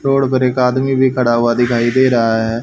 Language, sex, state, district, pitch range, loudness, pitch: Hindi, male, Haryana, Charkhi Dadri, 120-130 Hz, -14 LUFS, 125 Hz